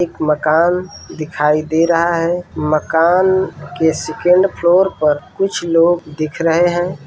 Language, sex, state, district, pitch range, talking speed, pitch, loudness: Hindi, male, Bihar, Saran, 155-175 Hz, 135 wpm, 165 Hz, -15 LUFS